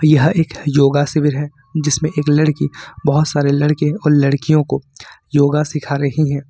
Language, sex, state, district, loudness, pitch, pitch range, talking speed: Hindi, male, Jharkhand, Ranchi, -16 LUFS, 150 Hz, 140-155 Hz, 165 wpm